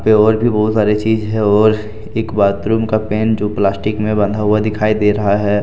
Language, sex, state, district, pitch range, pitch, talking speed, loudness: Hindi, male, Jharkhand, Deoghar, 105-110 Hz, 105 Hz, 215 wpm, -15 LUFS